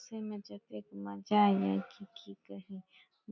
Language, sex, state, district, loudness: Maithili, female, Bihar, Saharsa, -33 LUFS